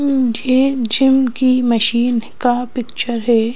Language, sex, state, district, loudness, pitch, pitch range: Hindi, female, Madhya Pradesh, Bhopal, -15 LUFS, 245 Hz, 235-260 Hz